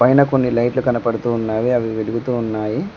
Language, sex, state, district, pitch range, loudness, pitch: Telugu, male, Telangana, Mahabubabad, 115-125 Hz, -18 LUFS, 120 Hz